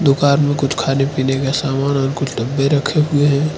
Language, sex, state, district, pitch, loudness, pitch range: Hindi, male, Arunachal Pradesh, Lower Dibang Valley, 140 Hz, -16 LUFS, 135-145 Hz